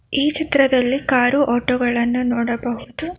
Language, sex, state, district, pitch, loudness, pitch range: Kannada, female, Karnataka, Bangalore, 250 Hz, -18 LUFS, 240-280 Hz